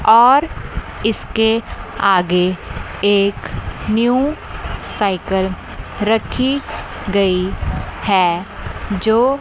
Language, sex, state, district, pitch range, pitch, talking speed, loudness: Hindi, female, Chandigarh, Chandigarh, 190-230 Hz, 205 Hz, 65 wpm, -17 LUFS